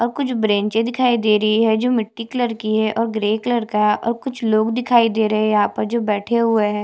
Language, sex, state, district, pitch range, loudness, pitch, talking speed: Hindi, female, Chhattisgarh, Jashpur, 215-235 Hz, -18 LUFS, 225 Hz, 265 wpm